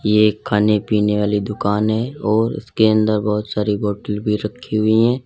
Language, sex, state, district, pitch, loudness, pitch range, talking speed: Hindi, male, Uttar Pradesh, Lalitpur, 105 Hz, -18 LUFS, 105-110 Hz, 195 wpm